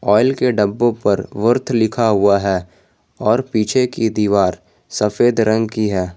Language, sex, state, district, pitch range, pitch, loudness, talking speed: Hindi, male, Jharkhand, Garhwa, 100-120 Hz, 110 Hz, -16 LUFS, 155 wpm